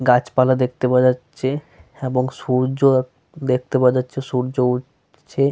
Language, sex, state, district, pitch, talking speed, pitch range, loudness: Bengali, male, Jharkhand, Sahebganj, 130 Hz, 120 wpm, 125-135 Hz, -19 LUFS